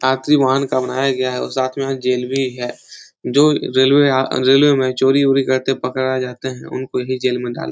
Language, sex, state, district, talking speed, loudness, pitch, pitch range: Hindi, male, Uttar Pradesh, Etah, 220 wpm, -17 LUFS, 130 Hz, 130-135 Hz